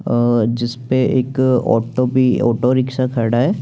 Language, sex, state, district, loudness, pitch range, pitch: Hindi, male, Chandigarh, Chandigarh, -16 LUFS, 120-130 Hz, 125 Hz